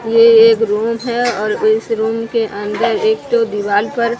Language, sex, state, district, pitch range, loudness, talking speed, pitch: Hindi, female, Odisha, Sambalpur, 215-235 Hz, -14 LUFS, 185 wpm, 225 Hz